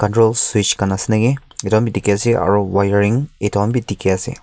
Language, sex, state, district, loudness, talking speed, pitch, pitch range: Nagamese, male, Nagaland, Kohima, -17 LUFS, 190 wpm, 105 Hz, 100-115 Hz